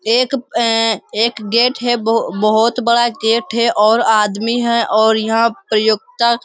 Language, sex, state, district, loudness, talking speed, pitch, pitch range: Hindi, female, Bihar, Jamui, -15 LUFS, 160 wpm, 230 Hz, 220-235 Hz